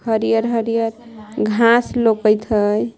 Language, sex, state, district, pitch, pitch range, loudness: Magahi, female, Jharkhand, Palamu, 225 Hz, 215-230 Hz, -17 LUFS